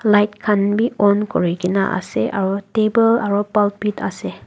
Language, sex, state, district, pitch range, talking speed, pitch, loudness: Nagamese, female, Nagaland, Dimapur, 200-215 Hz, 145 wpm, 205 Hz, -18 LUFS